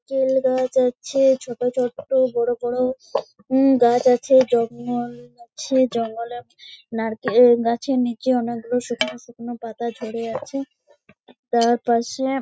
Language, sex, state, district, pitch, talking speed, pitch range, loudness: Bengali, female, West Bengal, Jalpaiguri, 245 Hz, 115 wpm, 235-260 Hz, -21 LUFS